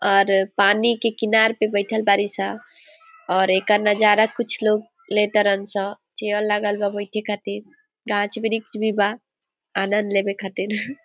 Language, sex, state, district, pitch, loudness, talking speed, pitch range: Hindi, female, Jharkhand, Sahebganj, 210 Hz, -21 LUFS, 165 wpm, 200-220 Hz